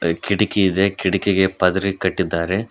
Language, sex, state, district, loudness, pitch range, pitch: Kannada, male, Karnataka, Koppal, -19 LUFS, 95-100 Hz, 95 Hz